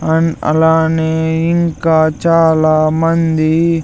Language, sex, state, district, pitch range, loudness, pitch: Telugu, male, Andhra Pradesh, Sri Satya Sai, 160-165 Hz, -13 LUFS, 160 Hz